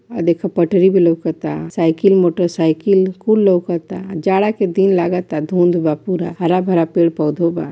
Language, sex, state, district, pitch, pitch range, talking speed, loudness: Hindi, female, Uttar Pradesh, Varanasi, 175 Hz, 170-190 Hz, 155 wpm, -16 LUFS